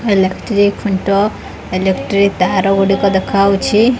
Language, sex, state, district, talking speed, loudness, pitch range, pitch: Odia, female, Odisha, Khordha, 90 wpm, -14 LUFS, 190-205 Hz, 200 Hz